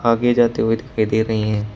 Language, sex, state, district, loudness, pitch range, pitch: Hindi, male, Uttar Pradesh, Shamli, -18 LUFS, 110-115 Hz, 110 Hz